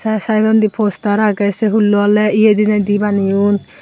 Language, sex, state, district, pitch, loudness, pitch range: Chakma, female, Tripura, Unakoti, 210 Hz, -14 LUFS, 205-215 Hz